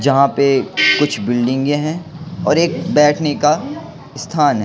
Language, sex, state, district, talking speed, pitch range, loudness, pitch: Hindi, male, Madhya Pradesh, Katni, 140 wpm, 135-155 Hz, -15 LUFS, 145 Hz